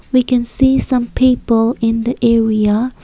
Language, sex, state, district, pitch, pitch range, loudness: English, female, Assam, Kamrup Metropolitan, 240 Hz, 230-255 Hz, -14 LUFS